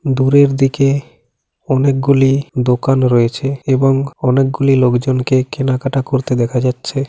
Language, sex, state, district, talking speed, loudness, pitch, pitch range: Bengali, male, West Bengal, Paschim Medinipur, 110 wpm, -14 LUFS, 135 Hz, 125-135 Hz